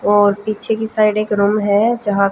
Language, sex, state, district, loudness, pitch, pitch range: Hindi, female, Haryana, Jhajjar, -16 LUFS, 210 Hz, 205-215 Hz